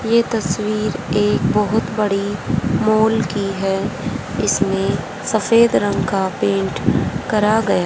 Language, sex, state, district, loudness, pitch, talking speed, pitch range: Hindi, female, Haryana, Rohtak, -18 LUFS, 210 Hz, 115 wpm, 195-220 Hz